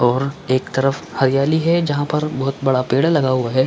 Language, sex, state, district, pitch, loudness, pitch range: Hindi, male, Chhattisgarh, Bilaspur, 135 Hz, -18 LUFS, 130-145 Hz